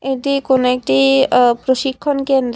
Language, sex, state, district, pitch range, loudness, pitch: Bengali, female, Tripura, West Tripura, 245-270 Hz, -15 LUFS, 260 Hz